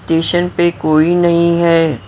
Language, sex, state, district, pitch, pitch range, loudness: Hindi, female, Maharashtra, Mumbai Suburban, 170 Hz, 160-175 Hz, -13 LUFS